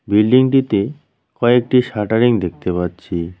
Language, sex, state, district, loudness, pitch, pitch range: Bengali, male, West Bengal, Cooch Behar, -16 LUFS, 110 Hz, 90-125 Hz